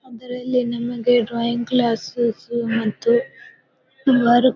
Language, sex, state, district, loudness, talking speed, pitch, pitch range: Kannada, female, Karnataka, Bijapur, -20 LUFS, 90 wpm, 240 Hz, 235-250 Hz